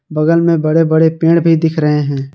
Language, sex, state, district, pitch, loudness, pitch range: Hindi, male, Jharkhand, Garhwa, 160 Hz, -12 LUFS, 155-165 Hz